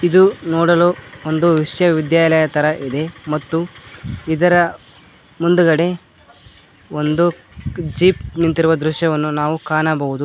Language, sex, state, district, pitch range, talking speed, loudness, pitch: Kannada, male, Karnataka, Koppal, 150-170 Hz, 95 wpm, -16 LUFS, 160 Hz